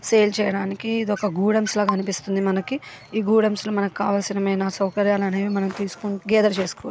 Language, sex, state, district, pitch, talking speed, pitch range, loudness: Telugu, female, Andhra Pradesh, Guntur, 200 Hz, 145 wpm, 195-210 Hz, -22 LUFS